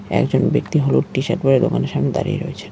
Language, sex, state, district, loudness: Bengali, male, West Bengal, Cooch Behar, -18 LUFS